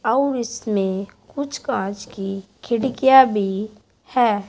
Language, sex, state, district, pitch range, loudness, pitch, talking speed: Hindi, female, Uttar Pradesh, Saharanpur, 200-265 Hz, -20 LUFS, 235 Hz, 105 wpm